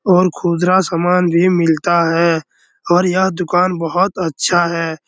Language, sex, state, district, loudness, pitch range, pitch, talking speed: Hindi, male, Bihar, Araria, -15 LUFS, 170-180 Hz, 175 Hz, 140 wpm